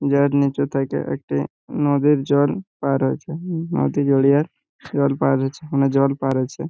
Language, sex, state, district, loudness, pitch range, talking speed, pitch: Bengali, male, West Bengal, Purulia, -20 LUFS, 135-145 Hz, 145 wpm, 140 Hz